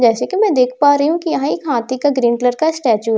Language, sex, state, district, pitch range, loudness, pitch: Hindi, female, Bihar, Katihar, 240-315 Hz, -15 LUFS, 260 Hz